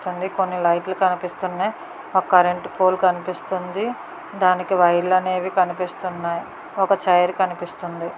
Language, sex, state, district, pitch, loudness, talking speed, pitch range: Telugu, female, Karnataka, Bellary, 185 Hz, -21 LUFS, 105 wpm, 180-185 Hz